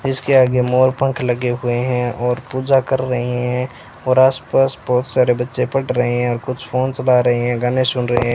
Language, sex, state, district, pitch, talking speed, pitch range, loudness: Hindi, male, Rajasthan, Bikaner, 125 Hz, 215 wpm, 125-130 Hz, -17 LUFS